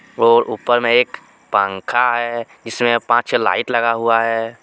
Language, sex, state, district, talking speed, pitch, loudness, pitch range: Hindi, male, Jharkhand, Deoghar, 170 wpm, 120 Hz, -17 LUFS, 115-120 Hz